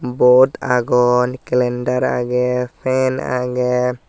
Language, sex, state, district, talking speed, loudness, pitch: Chakma, male, Tripura, Dhalai, 90 wpm, -17 LUFS, 125 Hz